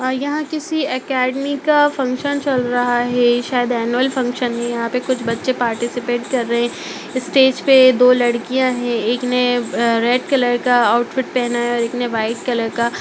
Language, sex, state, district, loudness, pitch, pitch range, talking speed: Hindi, female, Bihar, Darbhanga, -17 LUFS, 245 Hz, 240-260 Hz, 170 wpm